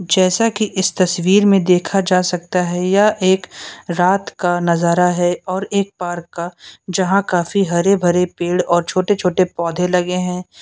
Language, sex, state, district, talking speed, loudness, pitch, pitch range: Hindi, male, Uttar Pradesh, Lucknow, 160 wpm, -16 LUFS, 180 Hz, 175-190 Hz